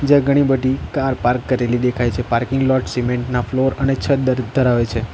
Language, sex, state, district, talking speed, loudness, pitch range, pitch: Gujarati, male, Gujarat, Valsad, 185 wpm, -18 LUFS, 120-135 Hz, 130 Hz